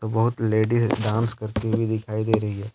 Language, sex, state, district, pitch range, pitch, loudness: Hindi, male, Jharkhand, Deoghar, 110-115 Hz, 110 Hz, -23 LUFS